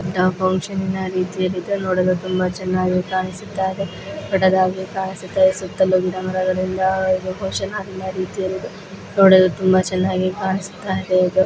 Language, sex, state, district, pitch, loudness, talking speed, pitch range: Kannada, female, Karnataka, Dakshina Kannada, 185 Hz, -19 LUFS, 110 wpm, 185-190 Hz